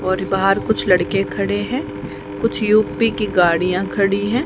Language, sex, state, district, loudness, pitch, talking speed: Hindi, female, Haryana, Charkhi Dadri, -18 LUFS, 190 Hz, 160 wpm